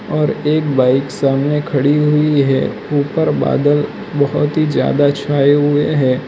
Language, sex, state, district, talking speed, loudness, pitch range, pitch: Hindi, male, Gujarat, Valsad, 145 wpm, -15 LUFS, 140-150 Hz, 145 Hz